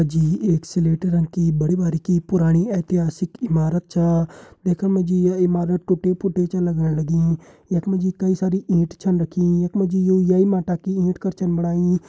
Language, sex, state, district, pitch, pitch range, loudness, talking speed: Hindi, male, Uttarakhand, Uttarkashi, 180 Hz, 170-185 Hz, -20 LUFS, 205 wpm